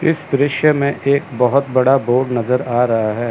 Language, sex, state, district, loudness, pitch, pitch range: Hindi, male, Chandigarh, Chandigarh, -16 LUFS, 130 Hz, 120-140 Hz